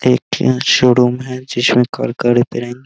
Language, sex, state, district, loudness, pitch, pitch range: Hindi, male, Bihar, Araria, -14 LUFS, 125 Hz, 120-125 Hz